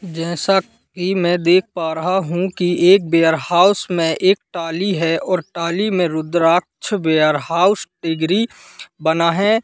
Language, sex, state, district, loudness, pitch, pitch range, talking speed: Hindi, male, Madhya Pradesh, Katni, -17 LUFS, 175 Hz, 165-190 Hz, 135 wpm